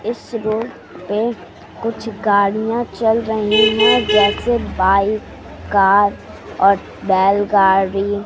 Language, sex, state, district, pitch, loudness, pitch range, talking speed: Hindi, female, Bihar, West Champaran, 210 Hz, -16 LUFS, 200-225 Hz, 95 wpm